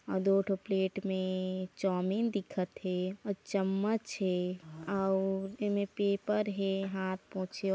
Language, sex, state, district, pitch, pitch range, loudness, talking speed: Chhattisgarhi, female, Chhattisgarh, Sarguja, 195 Hz, 185-200 Hz, -34 LUFS, 125 wpm